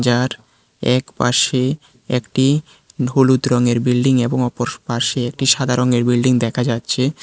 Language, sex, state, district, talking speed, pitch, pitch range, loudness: Bengali, male, Tripura, West Tripura, 125 wpm, 125 Hz, 120-130 Hz, -17 LUFS